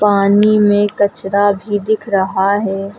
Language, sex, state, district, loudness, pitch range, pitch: Hindi, female, Uttar Pradesh, Lucknow, -14 LUFS, 200-205 Hz, 205 Hz